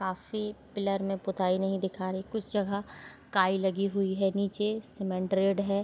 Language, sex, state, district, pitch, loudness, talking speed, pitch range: Hindi, female, Jharkhand, Sahebganj, 195 Hz, -31 LUFS, 165 wpm, 190-200 Hz